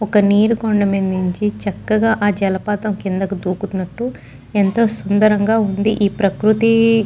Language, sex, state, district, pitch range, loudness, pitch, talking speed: Telugu, female, Andhra Pradesh, Guntur, 195-220 Hz, -17 LUFS, 205 Hz, 130 wpm